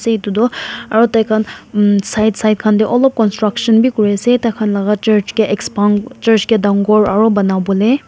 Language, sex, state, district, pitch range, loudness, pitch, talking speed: Nagamese, female, Nagaland, Kohima, 205-225 Hz, -13 LUFS, 215 Hz, 180 wpm